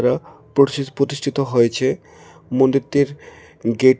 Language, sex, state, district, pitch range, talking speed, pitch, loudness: Bengali, male, Tripura, West Tripura, 130-140 Hz, 75 wpm, 135 Hz, -19 LUFS